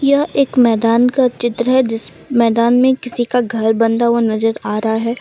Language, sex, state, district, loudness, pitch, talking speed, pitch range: Hindi, female, Jharkhand, Deoghar, -14 LUFS, 235 Hz, 205 wpm, 225-250 Hz